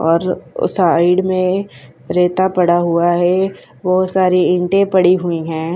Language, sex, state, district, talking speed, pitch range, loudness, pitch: Hindi, female, Haryana, Charkhi Dadri, 135 wpm, 175-185 Hz, -15 LUFS, 180 Hz